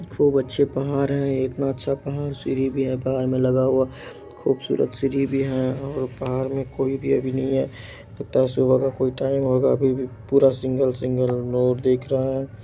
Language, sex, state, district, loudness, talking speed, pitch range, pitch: Maithili, male, Bihar, Supaul, -22 LUFS, 200 wpm, 130-135 Hz, 130 Hz